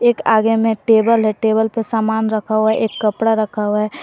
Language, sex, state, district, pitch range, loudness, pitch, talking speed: Hindi, female, Jharkhand, Garhwa, 215-225 Hz, -16 LUFS, 220 Hz, 240 wpm